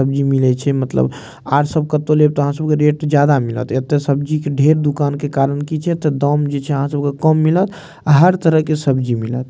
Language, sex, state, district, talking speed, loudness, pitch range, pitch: Maithili, male, Bihar, Purnia, 235 wpm, -16 LUFS, 140-155 Hz, 145 Hz